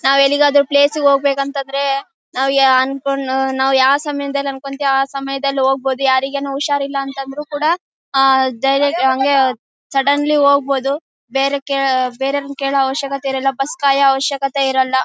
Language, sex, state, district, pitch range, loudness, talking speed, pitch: Kannada, female, Karnataka, Bellary, 270-280 Hz, -16 LUFS, 145 wpm, 275 Hz